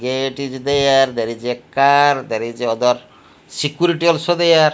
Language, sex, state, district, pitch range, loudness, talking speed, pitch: English, male, Odisha, Malkangiri, 120-145 Hz, -17 LUFS, 175 wpm, 135 Hz